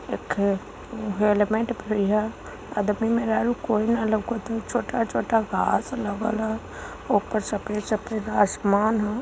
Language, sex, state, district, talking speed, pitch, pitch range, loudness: Hindi, female, Uttar Pradesh, Varanasi, 115 wpm, 215 Hz, 210-225 Hz, -25 LUFS